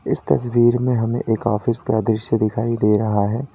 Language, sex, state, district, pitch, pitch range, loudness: Hindi, male, Uttar Pradesh, Lalitpur, 115 Hz, 110-120 Hz, -19 LUFS